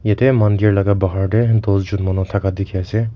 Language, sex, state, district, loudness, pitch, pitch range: Nagamese, male, Nagaland, Kohima, -17 LUFS, 100 Hz, 95-110 Hz